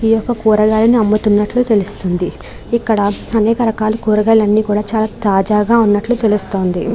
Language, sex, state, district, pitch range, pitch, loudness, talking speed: Telugu, female, Andhra Pradesh, Krishna, 210-225 Hz, 215 Hz, -14 LUFS, 120 wpm